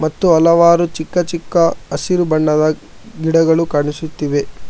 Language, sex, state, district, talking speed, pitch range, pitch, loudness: Kannada, male, Karnataka, Bangalore, 100 wpm, 155-170 Hz, 160 Hz, -15 LUFS